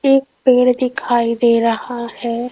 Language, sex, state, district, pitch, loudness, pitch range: Hindi, female, Rajasthan, Jaipur, 240 Hz, -16 LUFS, 235-255 Hz